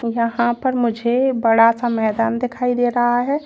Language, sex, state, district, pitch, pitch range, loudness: Hindi, female, Uttar Pradesh, Lalitpur, 240 Hz, 230-245 Hz, -18 LUFS